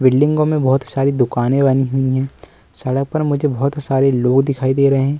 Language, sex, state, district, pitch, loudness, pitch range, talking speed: Hindi, male, Uttar Pradesh, Muzaffarnagar, 135 Hz, -16 LUFS, 130-140 Hz, 210 wpm